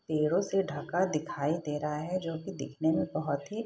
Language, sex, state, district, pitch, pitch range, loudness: Hindi, female, Bihar, Saharsa, 155 Hz, 150-185 Hz, -32 LUFS